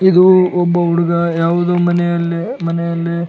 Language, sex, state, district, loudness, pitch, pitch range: Kannada, male, Karnataka, Bellary, -14 LUFS, 170 Hz, 170-175 Hz